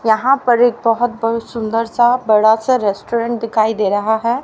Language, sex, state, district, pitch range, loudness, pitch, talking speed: Hindi, female, Haryana, Rohtak, 220-240 Hz, -15 LUFS, 230 Hz, 190 wpm